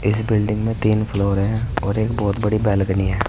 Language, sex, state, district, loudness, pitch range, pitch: Hindi, male, Uttar Pradesh, Saharanpur, -19 LUFS, 100-110 Hz, 105 Hz